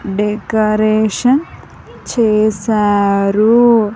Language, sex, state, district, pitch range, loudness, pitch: Telugu, female, Andhra Pradesh, Sri Satya Sai, 205-225 Hz, -13 LUFS, 215 Hz